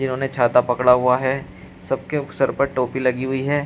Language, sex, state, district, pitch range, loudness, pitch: Hindi, male, Uttar Pradesh, Shamli, 125-135 Hz, -20 LUFS, 130 Hz